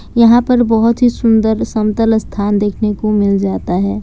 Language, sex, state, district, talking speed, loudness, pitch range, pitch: Hindi, female, Bihar, Kishanganj, 180 wpm, -13 LUFS, 205-230 Hz, 220 Hz